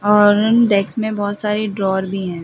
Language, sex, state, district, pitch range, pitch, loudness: Hindi, female, Bihar, Gopalganj, 195-215 Hz, 205 Hz, -16 LUFS